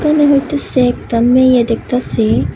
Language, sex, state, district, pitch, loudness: Bengali, female, Tripura, West Tripura, 245 Hz, -13 LUFS